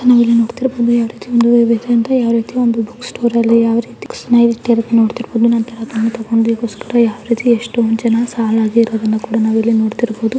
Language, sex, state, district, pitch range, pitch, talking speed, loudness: Kannada, female, Karnataka, Dakshina Kannada, 225-235 Hz, 230 Hz, 145 wpm, -14 LUFS